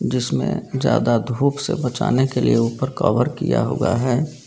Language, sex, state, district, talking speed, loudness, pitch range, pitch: Hindi, male, Jharkhand, Garhwa, 160 wpm, -20 LUFS, 120-140 Hz, 130 Hz